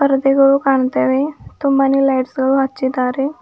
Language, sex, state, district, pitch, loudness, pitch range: Kannada, female, Karnataka, Bidar, 270 Hz, -16 LUFS, 260-275 Hz